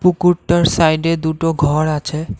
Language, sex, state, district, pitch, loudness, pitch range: Bengali, male, Assam, Kamrup Metropolitan, 165 Hz, -16 LUFS, 155-170 Hz